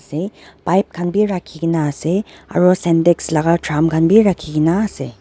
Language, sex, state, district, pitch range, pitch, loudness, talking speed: Nagamese, female, Nagaland, Dimapur, 160-185 Hz, 170 Hz, -16 LUFS, 150 wpm